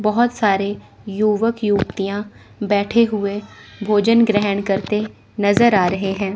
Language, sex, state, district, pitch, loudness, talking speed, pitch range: Hindi, female, Chandigarh, Chandigarh, 205 Hz, -18 LUFS, 125 wpm, 200-215 Hz